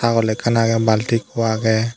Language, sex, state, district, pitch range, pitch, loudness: Chakma, male, Tripura, Dhalai, 110-115 Hz, 115 Hz, -18 LUFS